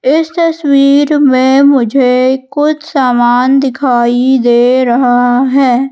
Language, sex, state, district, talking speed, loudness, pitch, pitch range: Hindi, female, Madhya Pradesh, Katni, 100 wpm, -9 LUFS, 265 Hz, 250-280 Hz